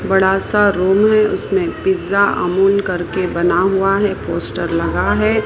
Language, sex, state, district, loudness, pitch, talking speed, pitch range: Hindi, female, Maharashtra, Mumbai Suburban, -16 LUFS, 190 Hz, 165 wpm, 175-205 Hz